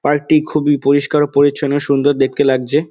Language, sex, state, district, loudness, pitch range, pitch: Bengali, male, West Bengal, Dakshin Dinajpur, -14 LUFS, 140-150 Hz, 145 Hz